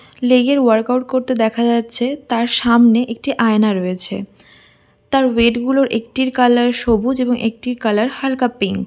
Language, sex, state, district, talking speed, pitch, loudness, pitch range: Bengali, female, West Bengal, Dakshin Dinajpur, 170 wpm, 240 Hz, -16 LUFS, 225-255 Hz